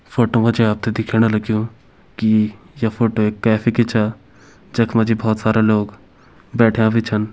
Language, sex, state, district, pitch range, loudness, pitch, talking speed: Kumaoni, male, Uttarakhand, Uttarkashi, 105-115 Hz, -18 LUFS, 110 Hz, 165 wpm